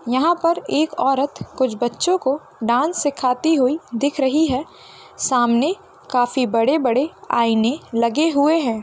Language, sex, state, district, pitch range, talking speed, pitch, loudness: Hindi, female, Bihar, Purnia, 240-315 Hz, 150 wpm, 270 Hz, -19 LUFS